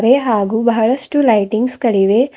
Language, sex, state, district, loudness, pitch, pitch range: Kannada, female, Karnataka, Bidar, -14 LUFS, 230 Hz, 220-255 Hz